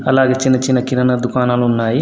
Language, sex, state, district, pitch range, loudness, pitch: Telugu, male, Telangana, Adilabad, 125-130 Hz, -15 LUFS, 125 Hz